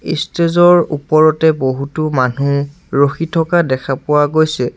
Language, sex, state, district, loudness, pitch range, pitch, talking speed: Assamese, male, Assam, Sonitpur, -14 LUFS, 140-165 Hz, 155 Hz, 125 wpm